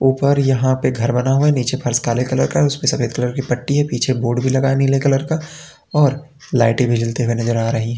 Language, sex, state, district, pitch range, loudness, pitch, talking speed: Hindi, male, Uttar Pradesh, Lalitpur, 120-140 Hz, -17 LUFS, 130 Hz, 265 wpm